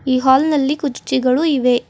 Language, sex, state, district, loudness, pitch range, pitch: Kannada, female, Karnataka, Bidar, -16 LUFS, 255-290 Hz, 265 Hz